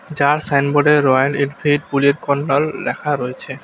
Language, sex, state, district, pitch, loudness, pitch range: Bengali, male, West Bengal, Alipurduar, 145 Hz, -16 LUFS, 140-145 Hz